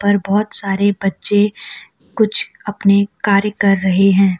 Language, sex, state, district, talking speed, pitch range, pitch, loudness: Hindi, female, Jharkhand, Deoghar, 135 wpm, 195-205 Hz, 200 Hz, -15 LUFS